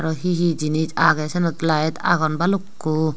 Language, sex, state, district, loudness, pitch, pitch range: Chakma, female, Tripura, Unakoti, -20 LUFS, 160 Hz, 155-175 Hz